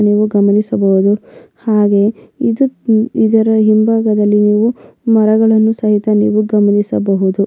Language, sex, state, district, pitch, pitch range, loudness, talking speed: Kannada, female, Karnataka, Mysore, 215 Hz, 205-220 Hz, -12 LUFS, 90 wpm